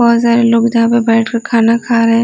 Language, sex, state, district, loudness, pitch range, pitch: Hindi, female, Delhi, New Delhi, -11 LUFS, 230-235 Hz, 230 Hz